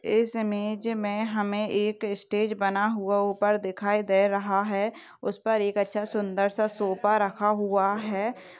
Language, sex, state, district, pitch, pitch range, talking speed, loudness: Hindi, female, Maharashtra, Solapur, 205 Hz, 200-215 Hz, 160 wpm, -26 LUFS